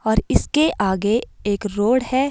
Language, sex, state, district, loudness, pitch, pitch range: Hindi, female, Himachal Pradesh, Shimla, -20 LUFS, 220 Hz, 205-260 Hz